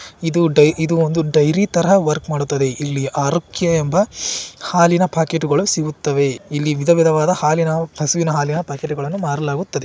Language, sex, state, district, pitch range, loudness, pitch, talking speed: Kannada, male, Karnataka, Shimoga, 145-170 Hz, -17 LUFS, 155 Hz, 135 wpm